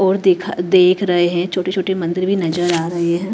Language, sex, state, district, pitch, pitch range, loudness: Hindi, female, Chhattisgarh, Raipur, 180 Hz, 175-190 Hz, -17 LUFS